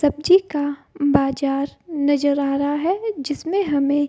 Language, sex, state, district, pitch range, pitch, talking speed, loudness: Hindi, female, Bihar, Gaya, 280-320 Hz, 285 Hz, 145 wpm, -20 LUFS